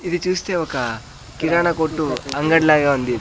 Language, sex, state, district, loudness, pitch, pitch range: Telugu, male, Andhra Pradesh, Sri Satya Sai, -19 LUFS, 155 Hz, 130-170 Hz